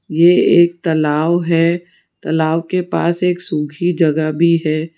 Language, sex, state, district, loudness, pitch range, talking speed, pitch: Hindi, female, Gujarat, Valsad, -15 LUFS, 155-175 Hz, 145 wpm, 170 Hz